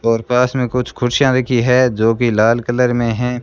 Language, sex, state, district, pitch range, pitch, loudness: Hindi, male, Rajasthan, Bikaner, 115-125 Hz, 125 Hz, -15 LUFS